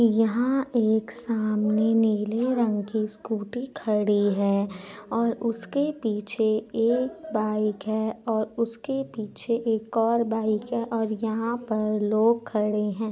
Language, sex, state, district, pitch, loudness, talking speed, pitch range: Hindi, female, Bihar, Supaul, 220 Hz, -26 LUFS, 130 wpm, 215-235 Hz